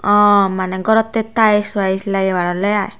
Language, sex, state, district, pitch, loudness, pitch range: Chakma, female, Tripura, Unakoti, 205 Hz, -15 LUFS, 190-215 Hz